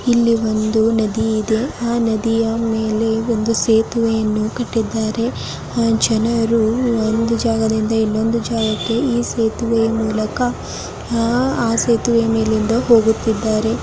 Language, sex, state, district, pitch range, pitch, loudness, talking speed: Kannada, female, Karnataka, Belgaum, 220-230 Hz, 225 Hz, -17 LUFS, 100 wpm